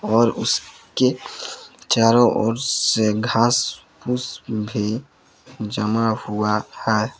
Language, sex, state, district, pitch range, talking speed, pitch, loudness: Hindi, male, Jharkhand, Palamu, 110-125 Hz, 90 wpm, 115 Hz, -20 LUFS